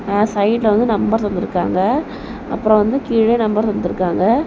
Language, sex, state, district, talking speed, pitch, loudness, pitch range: Tamil, female, Tamil Nadu, Kanyakumari, 135 wpm, 220 Hz, -16 LUFS, 205-235 Hz